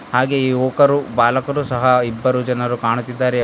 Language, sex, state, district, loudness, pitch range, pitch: Kannada, male, Karnataka, Bidar, -17 LUFS, 120-130 Hz, 125 Hz